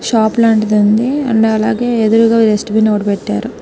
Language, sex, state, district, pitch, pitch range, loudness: Telugu, female, Telangana, Karimnagar, 220 Hz, 215-230 Hz, -12 LUFS